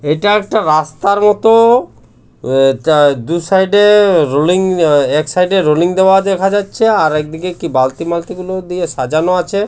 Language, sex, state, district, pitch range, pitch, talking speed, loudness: Bengali, male, West Bengal, Jhargram, 155-200 Hz, 180 Hz, 165 wpm, -12 LUFS